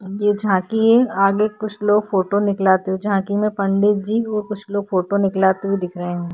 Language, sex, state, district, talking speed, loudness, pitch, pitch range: Hindi, female, Uttar Pradesh, Budaun, 215 wpm, -19 LUFS, 200 Hz, 190-210 Hz